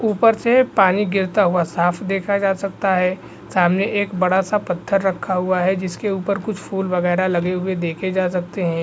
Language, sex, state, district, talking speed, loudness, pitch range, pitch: Hindi, male, Bihar, Vaishali, 195 wpm, -19 LUFS, 180-200 Hz, 190 Hz